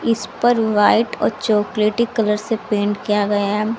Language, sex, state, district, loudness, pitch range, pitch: Hindi, female, Haryana, Rohtak, -18 LUFS, 210-230 Hz, 215 Hz